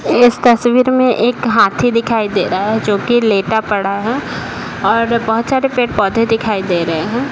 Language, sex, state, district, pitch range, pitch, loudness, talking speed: Hindi, male, Bihar, Jahanabad, 205-245 Hz, 230 Hz, -14 LUFS, 190 wpm